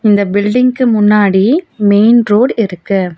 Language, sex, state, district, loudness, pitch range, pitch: Tamil, female, Tamil Nadu, Nilgiris, -10 LUFS, 200-235 Hz, 210 Hz